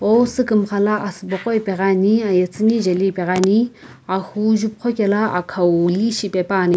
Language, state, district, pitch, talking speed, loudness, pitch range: Sumi, Nagaland, Kohima, 200 Hz, 150 wpm, -18 LUFS, 185-220 Hz